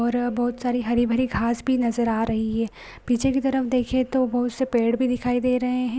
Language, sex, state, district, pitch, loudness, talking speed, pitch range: Hindi, female, Bihar, Supaul, 245 Hz, -23 LUFS, 230 wpm, 235-255 Hz